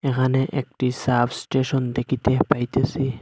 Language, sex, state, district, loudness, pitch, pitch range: Bengali, male, Assam, Hailakandi, -22 LUFS, 130 Hz, 125-135 Hz